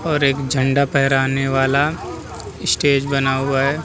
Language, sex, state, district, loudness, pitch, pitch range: Hindi, male, Bihar, Vaishali, -18 LUFS, 135 Hz, 135-140 Hz